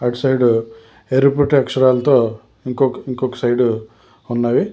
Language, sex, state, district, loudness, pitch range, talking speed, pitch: Telugu, male, Telangana, Hyderabad, -17 LUFS, 115-130 Hz, 90 wpm, 125 Hz